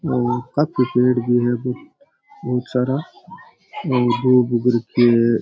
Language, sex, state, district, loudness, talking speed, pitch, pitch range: Rajasthani, male, Rajasthan, Churu, -19 LUFS, 135 wpm, 125 Hz, 120-135 Hz